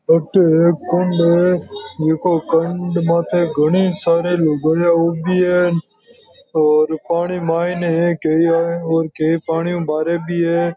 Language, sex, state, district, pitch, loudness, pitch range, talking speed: Marwari, male, Rajasthan, Nagaur, 170 Hz, -16 LUFS, 165-175 Hz, 115 wpm